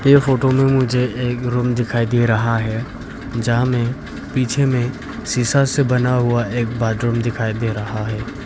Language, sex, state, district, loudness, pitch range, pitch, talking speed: Hindi, male, Arunachal Pradesh, Papum Pare, -18 LUFS, 115-130 Hz, 120 Hz, 170 wpm